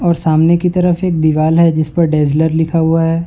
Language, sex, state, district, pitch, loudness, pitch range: Hindi, male, Uttar Pradesh, Varanasi, 165 Hz, -13 LUFS, 160-170 Hz